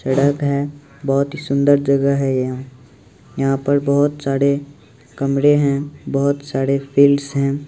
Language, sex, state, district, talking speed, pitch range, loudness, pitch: Maithili, male, Bihar, Supaul, 135 wpm, 135-140 Hz, -18 LUFS, 140 Hz